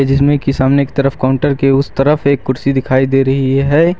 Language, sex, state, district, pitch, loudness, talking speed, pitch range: Hindi, male, Uttar Pradesh, Lucknow, 135 Hz, -13 LUFS, 225 wpm, 135-140 Hz